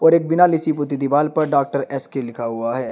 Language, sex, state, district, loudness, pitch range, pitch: Hindi, male, Uttar Pradesh, Shamli, -19 LUFS, 135-160 Hz, 140 Hz